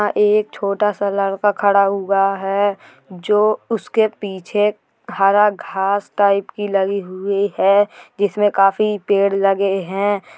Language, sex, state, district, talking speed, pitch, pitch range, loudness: Hindi, female, Uttar Pradesh, Hamirpur, 125 wpm, 200 Hz, 195-210 Hz, -17 LUFS